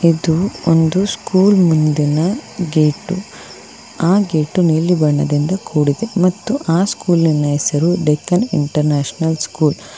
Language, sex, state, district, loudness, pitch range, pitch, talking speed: Kannada, female, Karnataka, Bangalore, -15 LUFS, 150-185 Hz, 165 Hz, 110 wpm